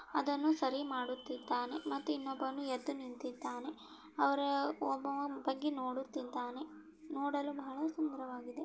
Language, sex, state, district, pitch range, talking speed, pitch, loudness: Kannada, female, Karnataka, Belgaum, 260-295 Hz, 105 wpm, 275 Hz, -39 LUFS